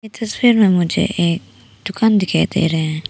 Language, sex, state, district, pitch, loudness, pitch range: Hindi, female, Arunachal Pradesh, Papum Pare, 180 Hz, -16 LUFS, 160-215 Hz